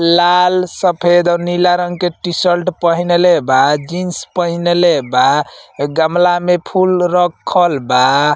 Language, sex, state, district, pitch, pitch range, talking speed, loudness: Bhojpuri, male, Uttar Pradesh, Ghazipur, 175 Hz, 165-180 Hz, 120 wpm, -13 LUFS